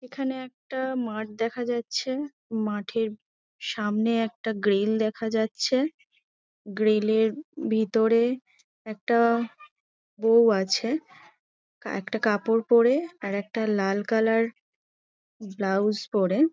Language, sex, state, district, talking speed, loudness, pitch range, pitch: Bengali, female, West Bengal, Dakshin Dinajpur, 95 wpm, -26 LUFS, 215-250 Hz, 225 Hz